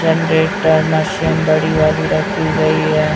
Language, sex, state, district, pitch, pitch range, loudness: Hindi, female, Chhattisgarh, Raipur, 160 Hz, 155-160 Hz, -14 LUFS